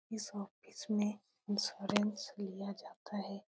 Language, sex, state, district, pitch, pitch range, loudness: Hindi, female, Bihar, Saran, 205 Hz, 200-210 Hz, -39 LUFS